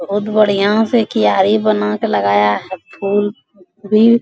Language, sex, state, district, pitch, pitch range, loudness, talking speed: Hindi, female, Bihar, Bhagalpur, 205 Hz, 185-215 Hz, -15 LUFS, 130 wpm